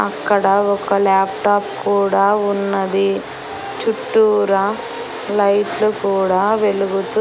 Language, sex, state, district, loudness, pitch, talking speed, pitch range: Telugu, female, Andhra Pradesh, Annamaya, -17 LUFS, 200 Hz, 90 wpm, 195-210 Hz